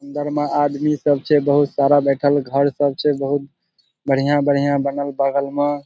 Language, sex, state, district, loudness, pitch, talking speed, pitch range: Maithili, male, Bihar, Supaul, -18 LUFS, 145 Hz, 165 wpm, 140-145 Hz